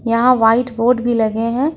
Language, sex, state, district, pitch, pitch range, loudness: Hindi, female, Jharkhand, Ranchi, 235 Hz, 230-250 Hz, -15 LUFS